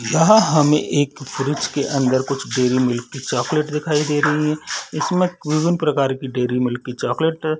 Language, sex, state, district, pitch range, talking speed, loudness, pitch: Hindi, male, Chhattisgarh, Sarguja, 130-155 Hz, 180 wpm, -19 LUFS, 145 Hz